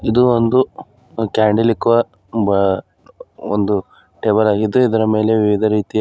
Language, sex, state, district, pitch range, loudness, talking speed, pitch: Kannada, male, Karnataka, Bidar, 105-115 Hz, -16 LUFS, 120 wpm, 110 Hz